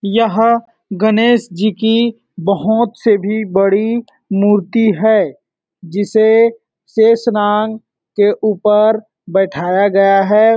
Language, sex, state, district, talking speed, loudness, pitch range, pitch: Hindi, male, Chhattisgarh, Balrampur, 95 wpm, -14 LUFS, 200-225 Hz, 215 Hz